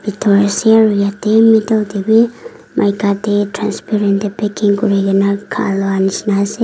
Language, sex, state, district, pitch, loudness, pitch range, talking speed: Nagamese, female, Nagaland, Kohima, 205 Hz, -14 LUFS, 200-220 Hz, 100 wpm